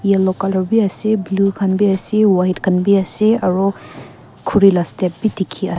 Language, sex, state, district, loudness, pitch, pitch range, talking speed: Nagamese, female, Nagaland, Kohima, -16 LUFS, 195 Hz, 185-205 Hz, 195 wpm